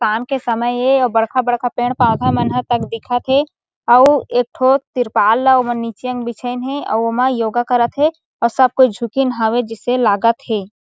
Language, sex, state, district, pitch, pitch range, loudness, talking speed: Chhattisgarhi, female, Chhattisgarh, Sarguja, 245 Hz, 230-260 Hz, -16 LUFS, 180 wpm